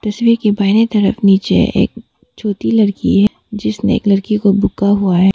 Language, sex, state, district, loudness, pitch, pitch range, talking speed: Hindi, female, Arunachal Pradesh, Papum Pare, -14 LUFS, 205 Hz, 200-210 Hz, 180 wpm